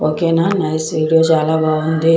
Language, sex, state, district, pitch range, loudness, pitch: Telugu, female, Andhra Pradesh, Chittoor, 155-165 Hz, -15 LUFS, 160 Hz